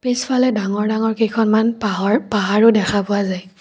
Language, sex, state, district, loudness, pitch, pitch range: Assamese, female, Assam, Kamrup Metropolitan, -17 LUFS, 215 Hz, 205-230 Hz